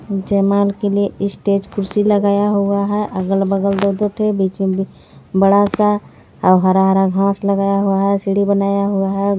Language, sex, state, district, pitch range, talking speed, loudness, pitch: Hindi, female, Jharkhand, Garhwa, 195-200 Hz, 140 wpm, -16 LUFS, 200 Hz